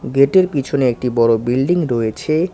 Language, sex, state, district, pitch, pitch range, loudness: Bengali, male, West Bengal, Cooch Behar, 135 Hz, 120-155 Hz, -16 LUFS